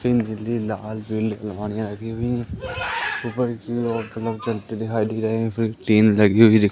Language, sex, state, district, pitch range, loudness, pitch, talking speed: Hindi, male, Madhya Pradesh, Katni, 105-115 Hz, -22 LUFS, 110 Hz, 115 wpm